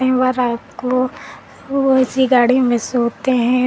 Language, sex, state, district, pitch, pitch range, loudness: Hindi, female, Uttar Pradesh, Lalitpur, 255 Hz, 245-260 Hz, -16 LUFS